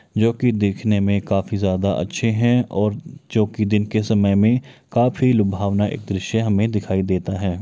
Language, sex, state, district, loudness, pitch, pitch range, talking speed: Maithili, male, Bihar, Muzaffarpur, -20 LUFS, 105 Hz, 100-115 Hz, 180 wpm